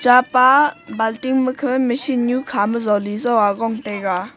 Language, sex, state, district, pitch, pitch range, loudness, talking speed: Wancho, female, Arunachal Pradesh, Longding, 240 Hz, 210-255 Hz, -18 LUFS, 150 wpm